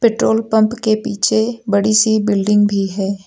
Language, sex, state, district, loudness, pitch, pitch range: Hindi, male, Uttar Pradesh, Lucknow, -15 LUFS, 215 Hz, 200-220 Hz